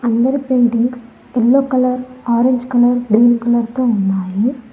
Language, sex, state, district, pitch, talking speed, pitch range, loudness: Telugu, female, Telangana, Mahabubabad, 240 Hz, 125 wpm, 235-255 Hz, -15 LUFS